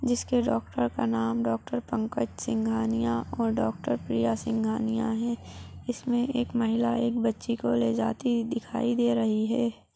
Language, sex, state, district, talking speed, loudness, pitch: Hindi, female, West Bengal, Purulia, 140 wpm, -28 LUFS, 120 Hz